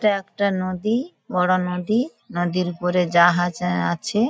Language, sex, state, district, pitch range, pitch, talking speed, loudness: Bengali, female, West Bengal, Paschim Medinipur, 180-215 Hz, 185 Hz, 125 wpm, -21 LUFS